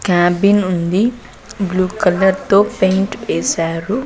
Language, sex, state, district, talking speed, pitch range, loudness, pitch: Telugu, female, Andhra Pradesh, Sri Satya Sai, 105 wpm, 180-205 Hz, -15 LUFS, 190 Hz